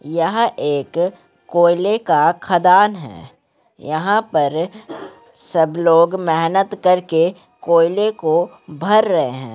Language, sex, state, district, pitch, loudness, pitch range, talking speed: Hindi, female, Bihar, Gaya, 170 Hz, -16 LUFS, 160-195 Hz, 40 wpm